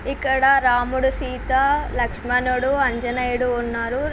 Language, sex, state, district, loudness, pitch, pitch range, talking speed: Telugu, female, Telangana, Nalgonda, -20 LUFS, 255 Hz, 245-270 Hz, 85 wpm